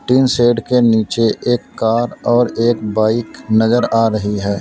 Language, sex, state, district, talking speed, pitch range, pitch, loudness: Hindi, male, Uttar Pradesh, Lalitpur, 170 wpm, 110-120 Hz, 115 Hz, -15 LUFS